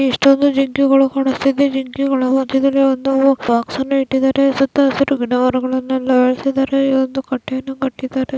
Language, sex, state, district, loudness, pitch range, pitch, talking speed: Kannada, female, Karnataka, Dakshina Kannada, -16 LUFS, 260-275 Hz, 270 Hz, 120 wpm